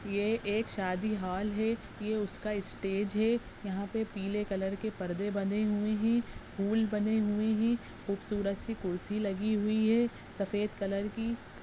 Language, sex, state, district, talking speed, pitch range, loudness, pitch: Hindi, female, Bihar, Madhepura, 160 wpm, 200-220 Hz, -33 LUFS, 210 Hz